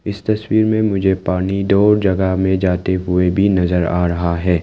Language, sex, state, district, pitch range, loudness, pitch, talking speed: Hindi, male, Arunachal Pradesh, Lower Dibang Valley, 90-100 Hz, -16 LUFS, 95 Hz, 195 wpm